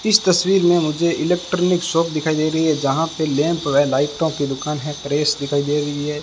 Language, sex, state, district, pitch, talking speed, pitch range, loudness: Hindi, male, Rajasthan, Bikaner, 155 Hz, 220 wpm, 145-170 Hz, -19 LUFS